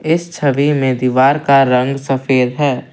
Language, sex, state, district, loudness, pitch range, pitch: Hindi, male, Assam, Kamrup Metropolitan, -14 LUFS, 130-145 Hz, 135 Hz